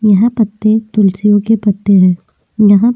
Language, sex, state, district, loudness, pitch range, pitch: Hindi, female, Uttarakhand, Tehri Garhwal, -11 LUFS, 200-220 Hz, 210 Hz